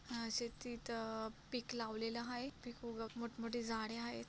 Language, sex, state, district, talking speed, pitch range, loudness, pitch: Marathi, female, Maharashtra, Solapur, 155 wpm, 225-240 Hz, -44 LUFS, 235 Hz